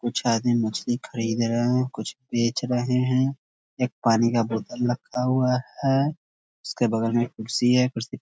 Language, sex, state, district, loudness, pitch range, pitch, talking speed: Hindi, male, Bihar, Muzaffarpur, -24 LUFS, 115-125 Hz, 120 Hz, 175 wpm